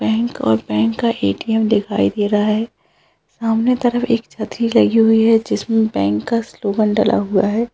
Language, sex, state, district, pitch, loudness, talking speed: Hindi, female, Bihar, Jahanabad, 215 Hz, -17 LUFS, 180 wpm